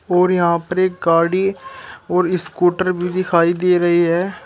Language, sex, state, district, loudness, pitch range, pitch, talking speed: Hindi, male, Uttar Pradesh, Shamli, -17 LUFS, 170-185 Hz, 180 Hz, 160 wpm